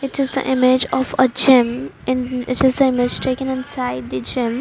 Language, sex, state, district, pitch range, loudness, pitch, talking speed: English, female, Haryana, Rohtak, 245-265 Hz, -18 LUFS, 255 Hz, 210 wpm